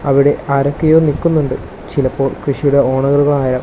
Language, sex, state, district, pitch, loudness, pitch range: Malayalam, male, Kerala, Kasaragod, 140 Hz, -14 LUFS, 135-145 Hz